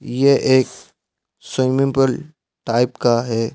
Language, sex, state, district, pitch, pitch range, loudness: Hindi, male, Madhya Pradesh, Bhopal, 130 Hz, 120-135 Hz, -18 LUFS